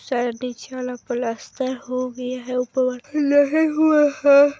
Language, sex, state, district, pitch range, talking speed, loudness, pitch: Maithili, female, Bihar, Vaishali, 250-285 Hz, 155 wpm, -21 LUFS, 255 Hz